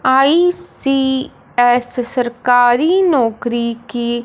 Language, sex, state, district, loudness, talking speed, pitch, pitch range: Hindi, male, Punjab, Fazilka, -15 LUFS, 55 wpm, 245 Hz, 240-270 Hz